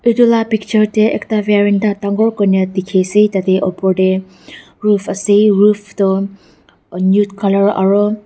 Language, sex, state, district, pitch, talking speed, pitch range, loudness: Nagamese, female, Nagaland, Dimapur, 200 Hz, 155 wpm, 190-210 Hz, -14 LUFS